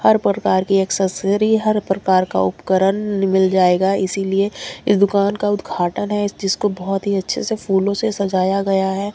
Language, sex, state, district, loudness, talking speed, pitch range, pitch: Hindi, female, Bihar, Katihar, -18 LUFS, 170 wpm, 190-200 Hz, 195 Hz